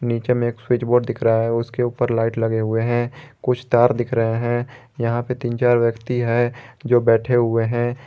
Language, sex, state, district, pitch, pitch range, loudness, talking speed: Hindi, male, Jharkhand, Garhwa, 120 Hz, 115-125 Hz, -20 LUFS, 210 wpm